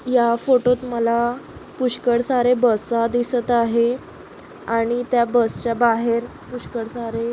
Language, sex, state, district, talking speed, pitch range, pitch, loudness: Marathi, female, Maharashtra, Solapur, 140 wpm, 235-245 Hz, 240 Hz, -20 LUFS